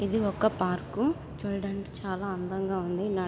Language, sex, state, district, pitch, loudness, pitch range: Telugu, female, Andhra Pradesh, Guntur, 195 Hz, -31 LUFS, 185-205 Hz